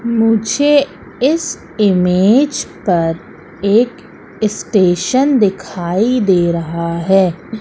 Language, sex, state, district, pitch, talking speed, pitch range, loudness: Hindi, female, Madhya Pradesh, Katni, 205 Hz, 80 wpm, 175-240 Hz, -14 LUFS